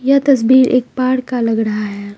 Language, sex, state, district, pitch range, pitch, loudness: Hindi, female, Bihar, Patna, 225-260 Hz, 250 Hz, -14 LUFS